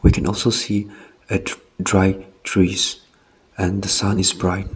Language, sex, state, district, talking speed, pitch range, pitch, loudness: English, male, Nagaland, Kohima, 150 wpm, 95-100 Hz, 95 Hz, -20 LUFS